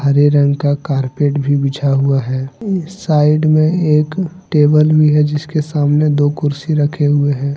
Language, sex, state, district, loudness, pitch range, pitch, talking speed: Hindi, male, Jharkhand, Deoghar, -14 LUFS, 145-155 Hz, 145 Hz, 165 wpm